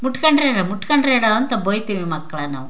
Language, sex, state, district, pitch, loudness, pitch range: Kannada, female, Karnataka, Chamarajanagar, 215 Hz, -18 LUFS, 180-265 Hz